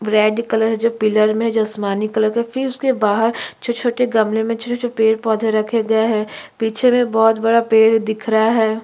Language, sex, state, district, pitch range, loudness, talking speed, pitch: Hindi, female, Chhattisgarh, Kabirdham, 220-230 Hz, -17 LUFS, 190 wpm, 225 Hz